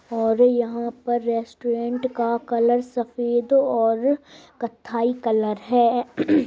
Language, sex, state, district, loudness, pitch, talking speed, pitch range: Hindi, female, Bihar, Saharsa, -22 LUFS, 240 Hz, 100 wpm, 235-245 Hz